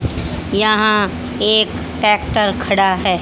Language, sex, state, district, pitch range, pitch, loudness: Hindi, female, Haryana, Jhajjar, 185-215 Hz, 205 Hz, -15 LUFS